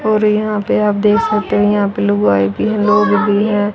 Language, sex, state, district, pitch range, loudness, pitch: Hindi, female, Haryana, Rohtak, 205-215 Hz, -14 LUFS, 210 Hz